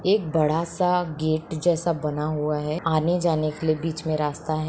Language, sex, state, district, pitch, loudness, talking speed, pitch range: Hindi, female, Bihar, Sitamarhi, 155 Hz, -24 LUFS, 205 wpm, 155-170 Hz